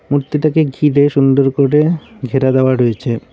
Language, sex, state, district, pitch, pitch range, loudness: Bengali, male, West Bengal, Cooch Behar, 140 Hz, 130-150 Hz, -14 LUFS